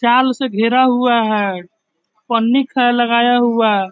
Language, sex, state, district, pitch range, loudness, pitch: Hindi, male, Bihar, East Champaran, 215-250 Hz, -15 LUFS, 235 Hz